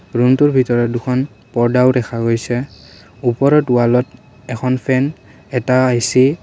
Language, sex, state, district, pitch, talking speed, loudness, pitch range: Assamese, male, Assam, Kamrup Metropolitan, 125 Hz, 120 wpm, -16 LUFS, 120-130 Hz